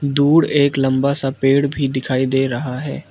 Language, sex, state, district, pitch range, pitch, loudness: Hindi, male, Arunachal Pradesh, Lower Dibang Valley, 130-140 Hz, 135 Hz, -17 LUFS